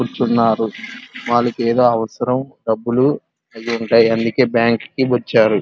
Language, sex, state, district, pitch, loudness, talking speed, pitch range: Telugu, male, Andhra Pradesh, Krishna, 120 Hz, -17 LUFS, 105 wpm, 115-125 Hz